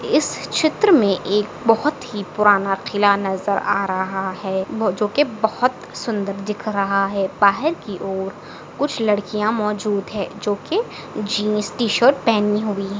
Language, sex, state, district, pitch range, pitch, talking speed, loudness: Hindi, female, Maharashtra, Solapur, 195-225 Hz, 210 Hz, 155 wpm, -20 LUFS